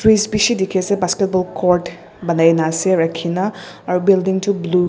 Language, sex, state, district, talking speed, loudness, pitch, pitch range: Nagamese, female, Nagaland, Dimapur, 210 wpm, -17 LUFS, 185 Hz, 175-195 Hz